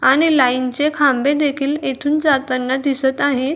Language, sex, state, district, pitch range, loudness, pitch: Marathi, female, Maharashtra, Dhule, 260-295 Hz, -17 LUFS, 275 Hz